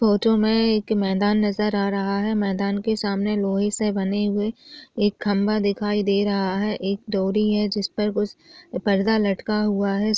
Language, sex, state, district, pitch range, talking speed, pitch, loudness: Chhattisgarhi, female, Chhattisgarh, Jashpur, 200-215 Hz, 185 wpm, 205 Hz, -22 LUFS